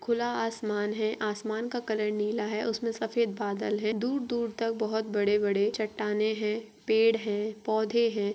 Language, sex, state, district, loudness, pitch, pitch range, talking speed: Hindi, female, Uttar Pradesh, Etah, -29 LUFS, 220 Hz, 210-225 Hz, 170 wpm